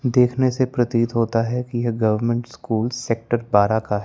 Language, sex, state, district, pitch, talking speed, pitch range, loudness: Hindi, male, Chandigarh, Chandigarh, 120 Hz, 175 wpm, 115-125 Hz, -21 LUFS